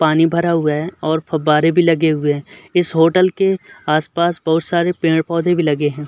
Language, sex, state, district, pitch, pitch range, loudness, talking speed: Hindi, male, Uttar Pradesh, Muzaffarnagar, 165 Hz, 155-170 Hz, -16 LUFS, 195 wpm